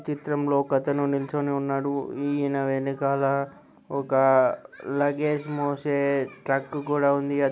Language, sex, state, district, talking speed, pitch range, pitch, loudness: Telugu, male, Telangana, Karimnagar, 105 wpm, 135-145 Hz, 140 Hz, -25 LUFS